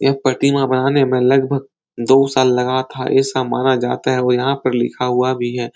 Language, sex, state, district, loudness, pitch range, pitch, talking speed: Hindi, male, Uttar Pradesh, Etah, -16 LUFS, 125-135 Hz, 130 Hz, 210 wpm